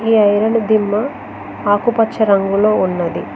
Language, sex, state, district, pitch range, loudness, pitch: Telugu, female, Telangana, Mahabubabad, 205-225 Hz, -15 LUFS, 215 Hz